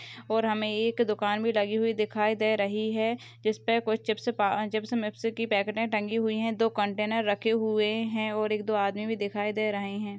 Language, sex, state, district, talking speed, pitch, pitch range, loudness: Hindi, female, Bihar, Begusarai, 210 wpm, 215 Hz, 210-225 Hz, -28 LUFS